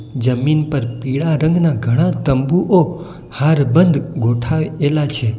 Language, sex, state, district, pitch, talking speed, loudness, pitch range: Gujarati, male, Gujarat, Valsad, 150 Hz, 110 wpm, -16 LUFS, 130-165 Hz